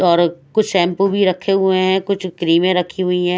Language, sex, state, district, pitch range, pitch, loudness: Hindi, female, Odisha, Malkangiri, 175-190 Hz, 185 Hz, -16 LUFS